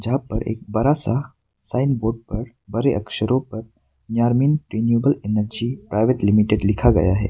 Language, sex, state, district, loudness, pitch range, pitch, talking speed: Hindi, male, Arunachal Pradesh, Papum Pare, -20 LUFS, 105-125 Hz, 115 Hz, 155 wpm